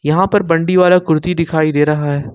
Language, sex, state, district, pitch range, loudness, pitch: Hindi, male, Jharkhand, Ranchi, 150-180 Hz, -13 LUFS, 160 Hz